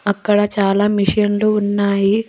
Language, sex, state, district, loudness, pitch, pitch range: Telugu, female, Telangana, Hyderabad, -16 LUFS, 205 Hz, 200-210 Hz